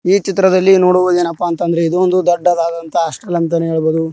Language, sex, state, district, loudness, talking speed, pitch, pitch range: Kannada, male, Karnataka, Koppal, -14 LUFS, 175 wpm, 175 Hz, 165-185 Hz